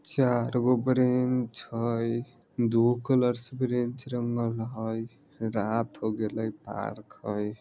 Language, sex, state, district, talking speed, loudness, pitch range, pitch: Maithili, male, Bihar, Vaishali, 125 wpm, -29 LUFS, 110-125 Hz, 120 Hz